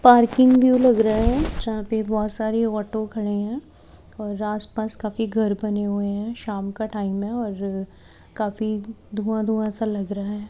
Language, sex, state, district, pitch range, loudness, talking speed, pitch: Hindi, female, Haryana, Charkhi Dadri, 205-225 Hz, -23 LUFS, 175 wpm, 215 Hz